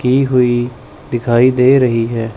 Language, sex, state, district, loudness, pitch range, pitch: Hindi, male, Chandigarh, Chandigarh, -13 LUFS, 115-125 Hz, 125 Hz